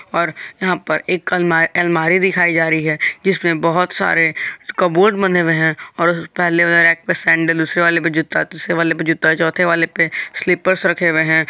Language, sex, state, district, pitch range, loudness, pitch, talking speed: Hindi, male, Jharkhand, Garhwa, 165-180 Hz, -15 LUFS, 170 Hz, 200 wpm